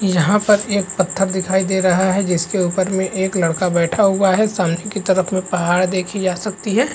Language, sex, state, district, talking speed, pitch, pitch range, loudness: Hindi, male, Chhattisgarh, Bastar, 215 wpm, 190 Hz, 180-200 Hz, -17 LUFS